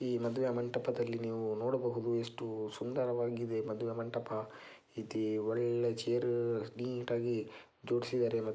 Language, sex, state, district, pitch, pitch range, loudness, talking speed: Kannada, male, Karnataka, Dakshina Kannada, 120 Hz, 110-120 Hz, -36 LUFS, 105 wpm